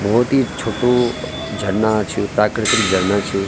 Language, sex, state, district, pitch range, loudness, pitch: Garhwali, male, Uttarakhand, Tehri Garhwal, 100-125 Hz, -17 LUFS, 110 Hz